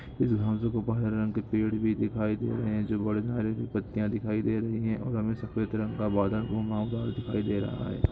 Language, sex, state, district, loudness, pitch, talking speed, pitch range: Hindi, male, Andhra Pradesh, Guntur, -30 LUFS, 110 Hz, 200 wpm, 105-115 Hz